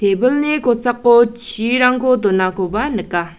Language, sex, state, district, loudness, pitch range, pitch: Garo, female, Meghalaya, South Garo Hills, -15 LUFS, 200-250 Hz, 235 Hz